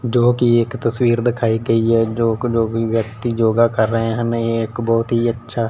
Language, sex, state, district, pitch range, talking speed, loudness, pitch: Hindi, male, Punjab, Fazilka, 115-120 Hz, 200 wpm, -17 LUFS, 115 Hz